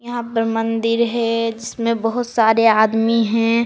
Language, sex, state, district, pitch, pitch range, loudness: Hindi, female, Jharkhand, Palamu, 230 Hz, 225-235 Hz, -18 LUFS